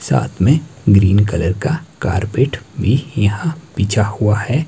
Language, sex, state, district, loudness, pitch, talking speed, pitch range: Hindi, male, Himachal Pradesh, Shimla, -16 LUFS, 110 Hz, 140 wpm, 100-145 Hz